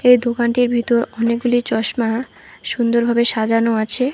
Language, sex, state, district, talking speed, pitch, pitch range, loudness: Bengali, female, West Bengal, Alipurduar, 115 wpm, 235 Hz, 230-245 Hz, -17 LUFS